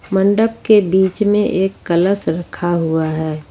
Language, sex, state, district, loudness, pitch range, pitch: Hindi, female, Jharkhand, Ranchi, -16 LUFS, 165-205 Hz, 190 Hz